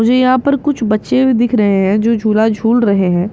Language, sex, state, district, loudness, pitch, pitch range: Hindi, female, Bihar, Katihar, -13 LUFS, 225 Hz, 210-255 Hz